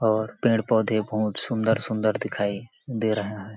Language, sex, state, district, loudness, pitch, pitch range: Hindi, male, Chhattisgarh, Sarguja, -25 LUFS, 110 Hz, 105-110 Hz